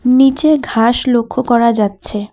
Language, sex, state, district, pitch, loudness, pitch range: Bengali, female, West Bengal, Alipurduar, 240 Hz, -13 LUFS, 225-260 Hz